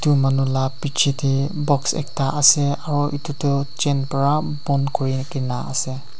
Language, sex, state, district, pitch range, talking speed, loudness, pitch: Nagamese, male, Nagaland, Kohima, 135-145 Hz, 165 wpm, -20 LUFS, 140 Hz